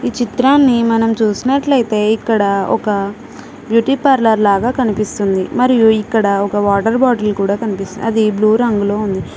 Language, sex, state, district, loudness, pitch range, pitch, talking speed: Telugu, female, Telangana, Mahabubabad, -14 LUFS, 205-240 Hz, 220 Hz, 135 wpm